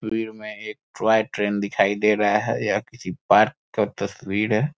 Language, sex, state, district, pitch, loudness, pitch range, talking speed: Hindi, male, Bihar, Saran, 105 Hz, -22 LUFS, 105-110 Hz, 190 wpm